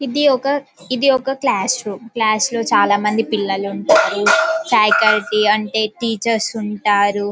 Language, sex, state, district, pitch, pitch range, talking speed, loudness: Telugu, female, Telangana, Karimnagar, 220 Hz, 210-255 Hz, 140 wpm, -16 LUFS